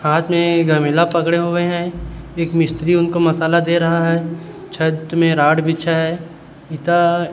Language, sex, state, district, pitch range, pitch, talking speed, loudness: Hindi, male, Chhattisgarh, Raipur, 160-170 Hz, 165 Hz, 165 wpm, -16 LUFS